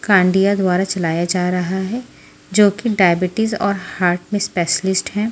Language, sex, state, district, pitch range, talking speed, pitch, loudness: Hindi, female, Haryana, Jhajjar, 180-205 Hz, 145 wpm, 190 Hz, -17 LUFS